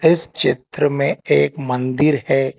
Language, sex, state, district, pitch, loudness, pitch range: Hindi, male, Telangana, Hyderabad, 140 Hz, -17 LUFS, 130-150 Hz